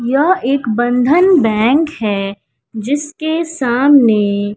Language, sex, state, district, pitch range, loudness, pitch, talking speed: Hindi, female, Bihar, West Champaran, 220-300 Hz, -13 LUFS, 260 Hz, 90 wpm